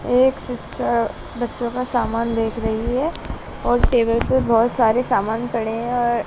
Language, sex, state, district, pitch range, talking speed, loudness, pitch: Hindi, female, Madhya Pradesh, Dhar, 225-245 Hz, 165 wpm, -20 LUFS, 235 Hz